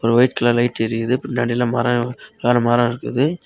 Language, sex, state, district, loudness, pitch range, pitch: Tamil, male, Tamil Nadu, Kanyakumari, -19 LUFS, 120-125 Hz, 120 Hz